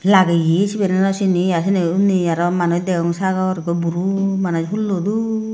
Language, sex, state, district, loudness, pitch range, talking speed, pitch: Chakma, female, Tripura, Unakoti, -18 LUFS, 170-195 Hz, 165 wpm, 185 Hz